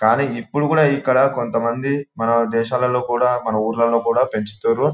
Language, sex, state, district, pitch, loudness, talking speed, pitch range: Telugu, male, Telangana, Nalgonda, 120 Hz, -19 LUFS, 145 wpm, 115-135 Hz